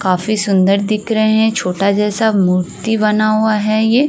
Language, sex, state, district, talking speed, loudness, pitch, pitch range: Hindi, female, Uttar Pradesh, Varanasi, 175 wpm, -14 LUFS, 215 Hz, 200-220 Hz